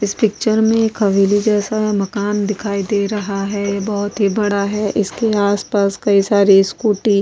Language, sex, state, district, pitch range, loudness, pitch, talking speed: Hindi, female, Goa, North and South Goa, 200-210 Hz, -16 LUFS, 205 Hz, 185 wpm